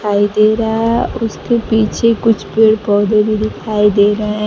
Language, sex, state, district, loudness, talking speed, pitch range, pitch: Hindi, female, Bihar, Kaimur, -13 LUFS, 175 wpm, 210-225 Hz, 215 Hz